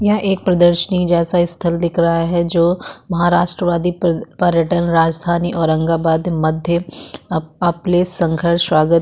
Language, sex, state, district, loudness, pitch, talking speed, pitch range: Hindi, female, Uttarakhand, Tehri Garhwal, -16 LUFS, 170 Hz, 125 wpm, 165-175 Hz